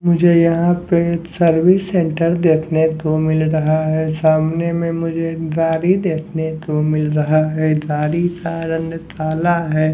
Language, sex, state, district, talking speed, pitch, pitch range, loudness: Hindi, male, Haryana, Jhajjar, 145 wpm, 165 Hz, 155-170 Hz, -17 LUFS